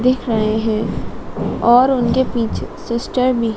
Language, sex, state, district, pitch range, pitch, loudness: Hindi, female, Madhya Pradesh, Dhar, 225-255 Hz, 235 Hz, -17 LUFS